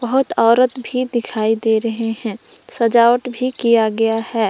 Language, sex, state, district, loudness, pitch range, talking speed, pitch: Hindi, female, Jharkhand, Palamu, -17 LUFS, 225-250 Hz, 160 wpm, 235 Hz